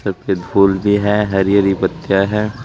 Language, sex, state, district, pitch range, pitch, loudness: Hindi, male, Uttar Pradesh, Saharanpur, 95-105 Hz, 100 Hz, -15 LUFS